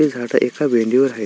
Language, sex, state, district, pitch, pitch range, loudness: Marathi, male, Maharashtra, Sindhudurg, 125 Hz, 115-140 Hz, -17 LUFS